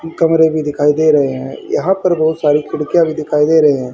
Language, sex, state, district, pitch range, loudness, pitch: Hindi, male, Haryana, Charkhi Dadri, 150-160 Hz, -14 LUFS, 155 Hz